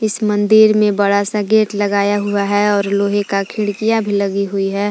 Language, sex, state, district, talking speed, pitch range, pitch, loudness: Hindi, female, Jharkhand, Palamu, 210 wpm, 200-210 Hz, 205 Hz, -15 LUFS